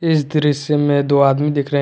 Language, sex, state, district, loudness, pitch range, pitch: Hindi, male, Jharkhand, Garhwa, -16 LUFS, 140-150 Hz, 145 Hz